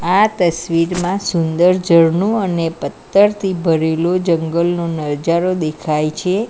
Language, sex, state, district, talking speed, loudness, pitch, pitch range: Gujarati, female, Gujarat, Valsad, 100 wpm, -16 LUFS, 170 Hz, 165-185 Hz